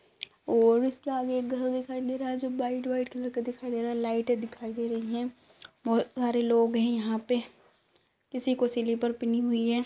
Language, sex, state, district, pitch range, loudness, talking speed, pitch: Hindi, female, Uttar Pradesh, Etah, 235-255 Hz, -29 LUFS, 215 wpm, 240 Hz